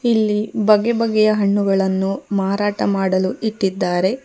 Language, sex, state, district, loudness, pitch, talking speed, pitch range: Kannada, female, Karnataka, Bangalore, -18 LUFS, 205 Hz, 100 wpm, 195-215 Hz